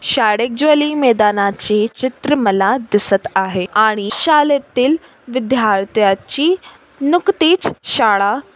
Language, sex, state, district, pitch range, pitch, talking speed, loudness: Marathi, female, Maharashtra, Sindhudurg, 205-290 Hz, 245 Hz, 85 wpm, -15 LUFS